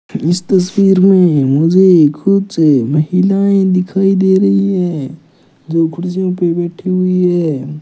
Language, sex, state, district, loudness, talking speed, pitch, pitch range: Hindi, male, Rajasthan, Bikaner, -12 LUFS, 125 wpm, 180 Hz, 160-190 Hz